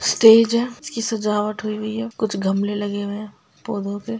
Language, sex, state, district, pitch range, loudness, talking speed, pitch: Hindi, female, Bihar, Saharsa, 205-225 Hz, -20 LUFS, 200 wpm, 215 Hz